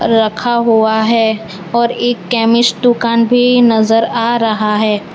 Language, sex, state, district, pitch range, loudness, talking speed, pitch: Hindi, female, Gujarat, Valsad, 220-235 Hz, -12 LUFS, 140 wpm, 230 Hz